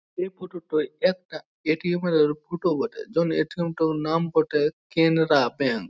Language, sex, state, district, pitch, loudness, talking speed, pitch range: Bengali, male, West Bengal, Jhargram, 165 Hz, -24 LUFS, 165 wpm, 155-175 Hz